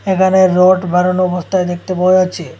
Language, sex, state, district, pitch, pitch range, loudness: Bengali, male, Assam, Hailakandi, 185 Hz, 180-185 Hz, -13 LUFS